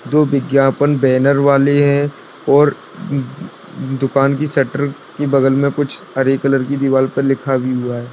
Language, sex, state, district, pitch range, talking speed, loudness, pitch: Hindi, male, Bihar, Darbhanga, 135-145 Hz, 160 wpm, -15 LUFS, 140 Hz